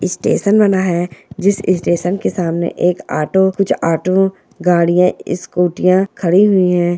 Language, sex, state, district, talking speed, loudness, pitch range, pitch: Hindi, male, Bihar, Jamui, 140 wpm, -15 LUFS, 175-190 Hz, 180 Hz